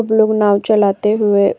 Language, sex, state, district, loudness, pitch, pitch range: Hindi, female, Uttar Pradesh, Jyotiba Phule Nagar, -14 LUFS, 210 Hz, 200-220 Hz